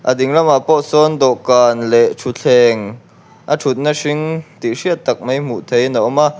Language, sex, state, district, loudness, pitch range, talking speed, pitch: Mizo, male, Mizoram, Aizawl, -14 LUFS, 120-150 Hz, 185 wpm, 135 Hz